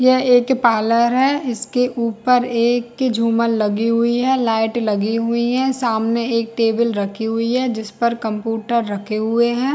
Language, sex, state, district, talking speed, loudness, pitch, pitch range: Hindi, female, Chhattisgarh, Bilaspur, 165 wpm, -18 LUFS, 235 Hz, 225-245 Hz